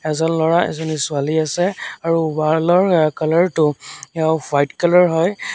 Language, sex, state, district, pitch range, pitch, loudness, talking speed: Assamese, male, Assam, Sonitpur, 155-170 Hz, 160 Hz, -17 LUFS, 150 wpm